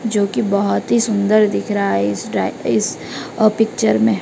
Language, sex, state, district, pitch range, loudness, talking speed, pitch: Hindi, female, Odisha, Malkangiri, 175-225 Hz, -17 LUFS, 200 wpm, 205 Hz